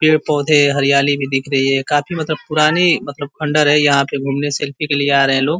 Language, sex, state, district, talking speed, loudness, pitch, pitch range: Hindi, male, Uttar Pradesh, Ghazipur, 235 wpm, -15 LUFS, 145 Hz, 140-150 Hz